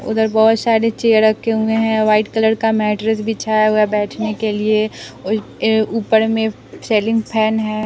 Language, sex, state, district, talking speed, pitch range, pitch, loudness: Hindi, female, Bihar, West Champaran, 175 wpm, 215-225 Hz, 220 Hz, -16 LUFS